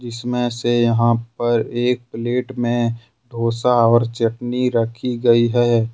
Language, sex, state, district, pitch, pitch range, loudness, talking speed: Hindi, male, Jharkhand, Ranchi, 120 Hz, 115-120 Hz, -19 LUFS, 130 wpm